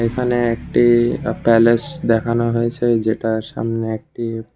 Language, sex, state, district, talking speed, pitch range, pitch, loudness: Bengali, male, Tripura, West Tripura, 90 wpm, 115-120 Hz, 115 Hz, -18 LUFS